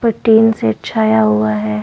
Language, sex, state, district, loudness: Hindi, female, Goa, North and South Goa, -13 LUFS